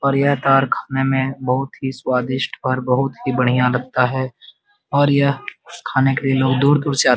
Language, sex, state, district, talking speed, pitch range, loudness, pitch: Hindi, male, Bihar, Jamui, 210 wpm, 130-140 Hz, -18 LUFS, 135 Hz